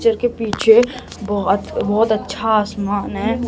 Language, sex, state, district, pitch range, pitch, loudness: Hindi, male, Maharashtra, Mumbai Suburban, 205-230 Hz, 220 Hz, -17 LUFS